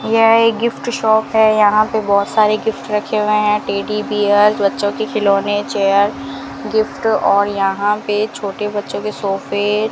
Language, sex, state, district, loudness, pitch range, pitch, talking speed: Hindi, female, Rajasthan, Bikaner, -15 LUFS, 200-220 Hz, 210 Hz, 170 wpm